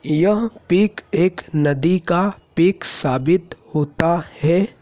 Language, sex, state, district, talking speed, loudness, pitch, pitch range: Hindi, male, Madhya Pradesh, Dhar, 110 wpm, -19 LUFS, 175 Hz, 150-185 Hz